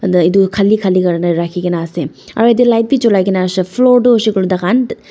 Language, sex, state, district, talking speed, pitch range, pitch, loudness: Nagamese, female, Nagaland, Dimapur, 210 wpm, 180-230 Hz, 190 Hz, -13 LUFS